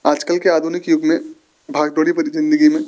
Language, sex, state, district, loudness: Hindi, male, Rajasthan, Jaipur, -17 LUFS